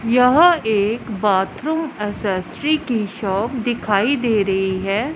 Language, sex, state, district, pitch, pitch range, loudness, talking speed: Hindi, female, Punjab, Pathankot, 215 Hz, 200-255 Hz, -19 LUFS, 115 wpm